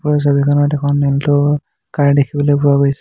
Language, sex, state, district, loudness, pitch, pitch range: Assamese, male, Assam, Hailakandi, -14 LUFS, 145 Hz, 140-145 Hz